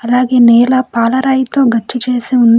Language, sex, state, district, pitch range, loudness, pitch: Telugu, female, Telangana, Hyderabad, 235-260 Hz, -11 LUFS, 250 Hz